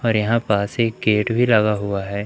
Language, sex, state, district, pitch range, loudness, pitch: Hindi, male, Madhya Pradesh, Umaria, 100-115 Hz, -19 LUFS, 110 Hz